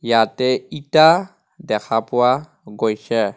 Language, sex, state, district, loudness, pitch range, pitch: Assamese, male, Assam, Kamrup Metropolitan, -18 LUFS, 115-140 Hz, 120 Hz